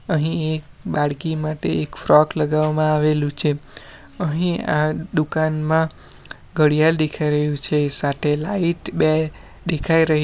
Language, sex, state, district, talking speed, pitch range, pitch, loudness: Gujarati, male, Gujarat, Valsad, 130 wpm, 150-160 Hz, 155 Hz, -20 LUFS